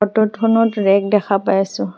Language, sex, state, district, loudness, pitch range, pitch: Assamese, female, Assam, Hailakandi, -16 LUFS, 195-215 Hz, 205 Hz